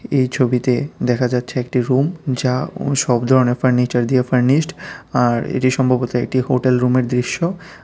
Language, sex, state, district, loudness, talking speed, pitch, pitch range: Bengali, male, Tripura, West Tripura, -17 LUFS, 155 wpm, 130 Hz, 125-130 Hz